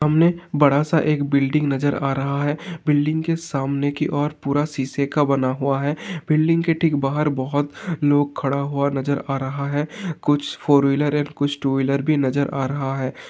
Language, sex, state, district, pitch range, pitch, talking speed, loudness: Hindi, male, Uttar Pradesh, Hamirpur, 140-150 Hz, 145 Hz, 200 wpm, -21 LUFS